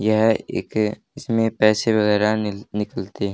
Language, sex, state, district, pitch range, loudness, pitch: Hindi, male, Haryana, Charkhi Dadri, 105-110 Hz, -21 LUFS, 110 Hz